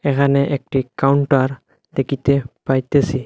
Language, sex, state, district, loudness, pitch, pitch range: Bengali, male, Assam, Hailakandi, -18 LUFS, 140 Hz, 130-140 Hz